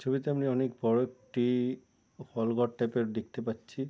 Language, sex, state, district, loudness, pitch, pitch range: Bengali, male, West Bengal, Jalpaiguri, -32 LUFS, 125 Hz, 115-130 Hz